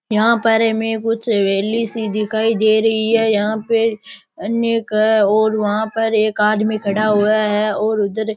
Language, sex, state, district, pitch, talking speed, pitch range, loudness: Rajasthani, male, Rajasthan, Churu, 220 Hz, 180 wpm, 215-225 Hz, -17 LUFS